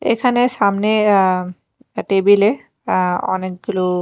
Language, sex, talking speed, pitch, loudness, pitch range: Bengali, female, 105 wpm, 200 Hz, -16 LUFS, 185-215 Hz